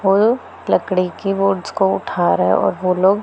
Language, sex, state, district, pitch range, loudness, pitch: Hindi, female, Punjab, Pathankot, 150-195 Hz, -17 LUFS, 185 Hz